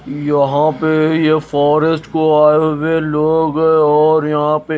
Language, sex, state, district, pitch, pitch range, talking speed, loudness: Hindi, male, Odisha, Nuapada, 155 Hz, 150-160 Hz, 150 wpm, -13 LUFS